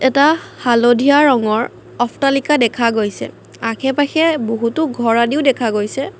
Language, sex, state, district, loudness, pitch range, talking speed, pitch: Assamese, female, Assam, Kamrup Metropolitan, -15 LUFS, 230-280 Hz, 125 wpm, 245 Hz